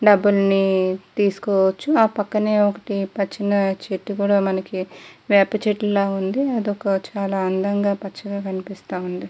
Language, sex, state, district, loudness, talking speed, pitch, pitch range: Telugu, female, Andhra Pradesh, Guntur, -21 LUFS, 110 wpm, 200 Hz, 190-205 Hz